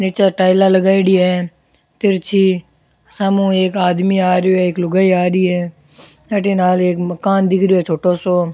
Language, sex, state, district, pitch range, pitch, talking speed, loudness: Rajasthani, male, Rajasthan, Churu, 180-195 Hz, 185 Hz, 175 wpm, -15 LUFS